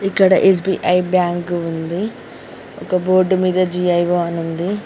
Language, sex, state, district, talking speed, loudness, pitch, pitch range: Telugu, female, Telangana, Mahabubabad, 150 wpm, -17 LUFS, 180 Hz, 175-190 Hz